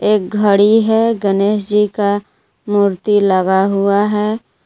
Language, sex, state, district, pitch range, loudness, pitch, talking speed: Hindi, female, Jharkhand, Garhwa, 200-210 Hz, -14 LUFS, 205 Hz, 130 wpm